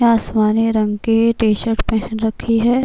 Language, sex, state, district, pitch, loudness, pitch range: Urdu, female, Bihar, Kishanganj, 225 Hz, -17 LUFS, 220-230 Hz